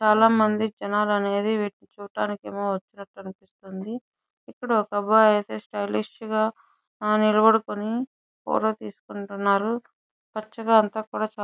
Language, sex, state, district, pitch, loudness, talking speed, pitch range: Telugu, female, Andhra Pradesh, Chittoor, 210 Hz, -24 LUFS, 115 wpm, 200-220 Hz